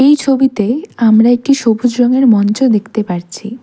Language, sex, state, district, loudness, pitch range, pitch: Bengali, female, West Bengal, Darjeeling, -12 LUFS, 220-265 Hz, 240 Hz